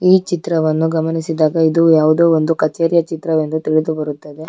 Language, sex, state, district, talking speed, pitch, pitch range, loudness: Kannada, female, Karnataka, Bangalore, 135 wpm, 160 Hz, 155-165 Hz, -15 LUFS